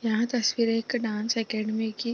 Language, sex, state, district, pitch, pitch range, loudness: Hindi, female, Bihar, East Champaran, 225 Hz, 220-235 Hz, -27 LUFS